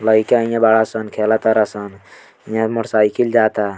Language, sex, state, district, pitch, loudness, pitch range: Bhojpuri, male, Bihar, Muzaffarpur, 110 Hz, -16 LUFS, 105-110 Hz